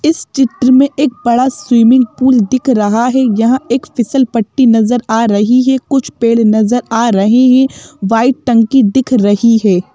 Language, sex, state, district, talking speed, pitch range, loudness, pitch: Hindi, female, Madhya Pradesh, Bhopal, 175 wpm, 225-260 Hz, -11 LUFS, 245 Hz